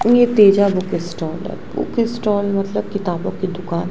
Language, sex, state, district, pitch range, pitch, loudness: Hindi, female, Gujarat, Gandhinagar, 180-210 Hz, 195 Hz, -18 LUFS